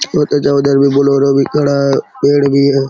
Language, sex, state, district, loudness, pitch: Hindi, male, Bihar, Araria, -12 LUFS, 140 Hz